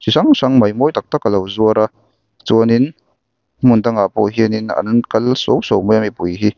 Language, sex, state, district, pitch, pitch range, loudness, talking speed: Mizo, male, Mizoram, Aizawl, 110 Hz, 105-125 Hz, -15 LUFS, 210 wpm